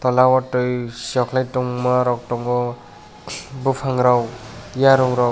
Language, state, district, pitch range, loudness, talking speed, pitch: Kokborok, Tripura, West Tripura, 120-130 Hz, -19 LUFS, 100 wpm, 125 Hz